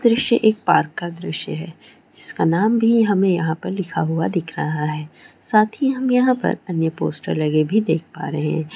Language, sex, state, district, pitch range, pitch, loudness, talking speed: Hindi, female, West Bengal, Jalpaiguri, 160-220 Hz, 175 Hz, -20 LUFS, 205 wpm